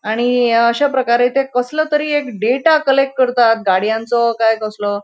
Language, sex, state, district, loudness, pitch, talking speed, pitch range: Konkani, female, Goa, North and South Goa, -15 LUFS, 240 Hz, 155 wpm, 225-270 Hz